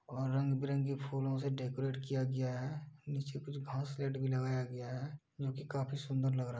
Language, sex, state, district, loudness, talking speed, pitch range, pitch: Hindi, male, Uttar Pradesh, Budaun, -38 LUFS, 200 wpm, 130-140 Hz, 135 Hz